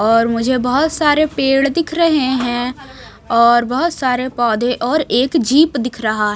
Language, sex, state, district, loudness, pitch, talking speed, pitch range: Hindi, female, Bihar, West Champaran, -15 LUFS, 255 Hz, 160 wpm, 240-295 Hz